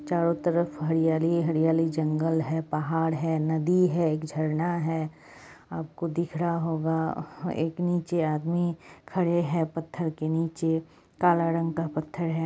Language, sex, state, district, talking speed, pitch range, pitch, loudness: Hindi, female, West Bengal, Jalpaiguri, 145 wpm, 160-170 Hz, 165 Hz, -27 LUFS